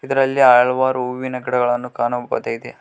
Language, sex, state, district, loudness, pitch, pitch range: Kannada, male, Karnataka, Koppal, -18 LUFS, 125 Hz, 125-130 Hz